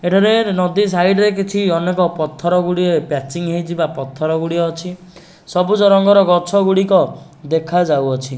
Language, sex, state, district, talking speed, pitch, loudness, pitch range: Odia, male, Odisha, Nuapada, 135 wpm, 175 Hz, -15 LUFS, 160-190 Hz